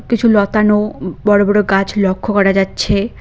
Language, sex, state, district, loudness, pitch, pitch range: Bengali, female, West Bengal, Cooch Behar, -14 LUFS, 205 Hz, 195-210 Hz